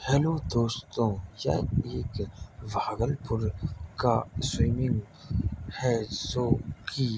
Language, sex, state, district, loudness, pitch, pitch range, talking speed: Hindi, male, Bihar, Bhagalpur, -30 LUFS, 115 Hz, 110-130 Hz, 90 wpm